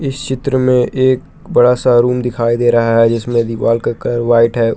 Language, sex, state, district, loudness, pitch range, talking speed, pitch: Hindi, male, Jharkhand, Palamu, -13 LUFS, 115-130 Hz, 215 wpm, 120 Hz